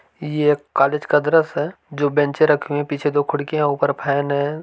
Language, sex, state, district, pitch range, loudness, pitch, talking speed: Hindi, male, Bihar, East Champaran, 140-150 Hz, -19 LUFS, 145 Hz, 235 wpm